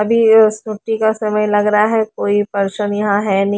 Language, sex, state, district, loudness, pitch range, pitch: Hindi, female, Haryana, Rohtak, -15 LUFS, 205-220 Hz, 210 Hz